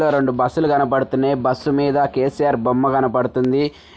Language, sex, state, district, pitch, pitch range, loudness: Telugu, male, Telangana, Nalgonda, 135 Hz, 130-140 Hz, -18 LUFS